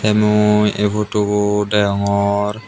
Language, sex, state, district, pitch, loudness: Chakma, male, Tripura, Unakoti, 105 Hz, -16 LUFS